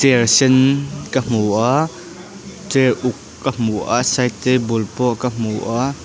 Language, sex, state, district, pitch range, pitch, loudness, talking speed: Mizo, male, Mizoram, Aizawl, 115-135 Hz, 125 Hz, -17 LUFS, 160 wpm